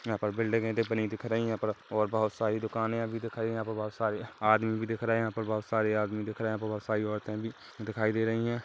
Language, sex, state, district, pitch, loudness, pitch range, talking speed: Hindi, male, Chhattisgarh, Kabirdham, 110 Hz, -31 LUFS, 110-115 Hz, 285 wpm